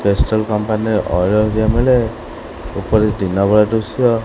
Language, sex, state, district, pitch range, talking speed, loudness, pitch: Odia, male, Odisha, Khordha, 105-110 Hz, 125 wpm, -16 LUFS, 110 Hz